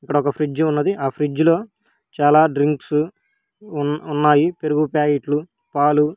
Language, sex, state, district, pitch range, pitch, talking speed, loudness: Telugu, female, Telangana, Hyderabad, 145-160 Hz, 150 Hz, 135 wpm, -19 LUFS